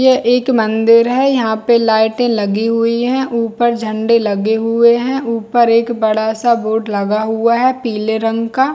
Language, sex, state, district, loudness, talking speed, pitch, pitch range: Hindi, female, Chhattisgarh, Bilaspur, -14 LUFS, 180 wpm, 230 Hz, 220-240 Hz